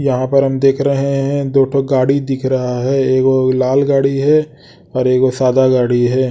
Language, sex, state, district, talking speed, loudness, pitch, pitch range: Hindi, male, Odisha, Sambalpur, 220 wpm, -14 LUFS, 135 Hz, 130-140 Hz